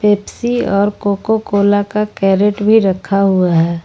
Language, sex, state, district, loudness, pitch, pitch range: Hindi, female, Jharkhand, Ranchi, -14 LUFS, 205 Hz, 195-210 Hz